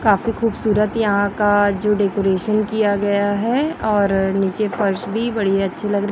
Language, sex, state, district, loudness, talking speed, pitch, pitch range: Hindi, female, Chhattisgarh, Raipur, -18 LUFS, 165 wpm, 205 Hz, 200-215 Hz